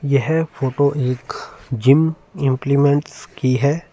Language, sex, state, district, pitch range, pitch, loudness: Hindi, male, Punjab, Fazilka, 130-150 Hz, 140 Hz, -18 LUFS